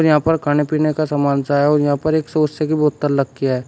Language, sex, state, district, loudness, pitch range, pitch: Hindi, male, Uttar Pradesh, Shamli, -17 LUFS, 140-155 Hz, 150 Hz